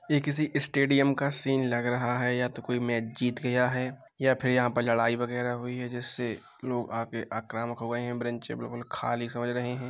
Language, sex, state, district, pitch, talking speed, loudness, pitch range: Hindi, male, Uttar Pradesh, Jalaun, 125 Hz, 220 wpm, -29 LUFS, 120-125 Hz